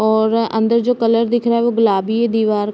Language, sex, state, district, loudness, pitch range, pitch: Hindi, female, Uttar Pradesh, Varanasi, -16 LUFS, 220-235 Hz, 230 Hz